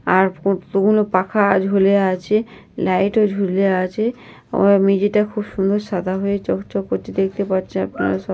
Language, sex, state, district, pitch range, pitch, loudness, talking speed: Bengali, female, West Bengal, North 24 Parganas, 185-205 Hz, 195 Hz, -18 LUFS, 150 wpm